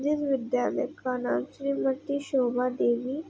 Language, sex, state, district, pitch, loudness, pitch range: Hindi, female, Uttar Pradesh, Budaun, 265 Hz, -28 LUFS, 250-280 Hz